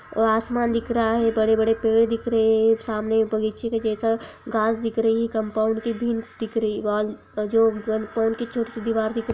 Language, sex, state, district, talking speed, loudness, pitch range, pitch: Hindi, female, Chhattisgarh, Bilaspur, 160 wpm, -23 LUFS, 220-230 Hz, 225 Hz